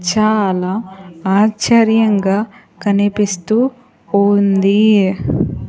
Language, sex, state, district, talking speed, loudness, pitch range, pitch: Telugu, female, Andhra Pradesh, Sri Satya Sai, 40 wpm, -14 LUFS, 190-215 Hz, 200 Hz